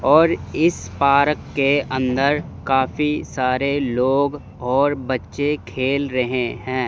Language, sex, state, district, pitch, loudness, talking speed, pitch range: Hindi, male, Chandigarh, Chandigarh, 135 Hz, -20 LUFS, 115 wpm, 130-145 Hz